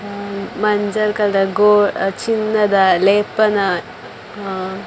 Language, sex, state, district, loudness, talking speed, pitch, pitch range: Tulu, female, Karnataka, Dakshina Kannada, -16 LUFS, 100 wpm, 205 Hz, 195-210 Hz